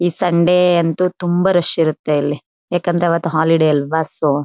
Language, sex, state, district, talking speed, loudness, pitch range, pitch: Kannada, female, Karnataka, Chamarajanagar, 175 wpm, -16 LUFS, 155-175 Hz, 170 Hz